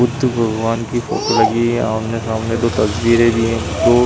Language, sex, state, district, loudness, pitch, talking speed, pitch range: Hindi, male, Uttar Pradesh, Hamirpur, -16 LUFS, 115 Hz, 190 wpm, 110-115 Hz